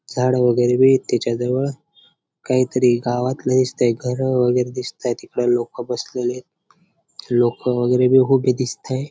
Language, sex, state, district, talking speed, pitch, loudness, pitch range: Marathi, male, Maharashtra, Dhule, 130 wpm, 125 Hz, -19 LUFS, 120-130 Hz